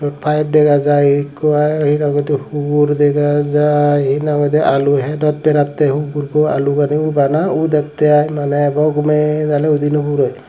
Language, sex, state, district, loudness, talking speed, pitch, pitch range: Chakma, male, Tripura, Dhalai, -14 LUFS, 110 wpm, 150 Hz, 145-150 Hz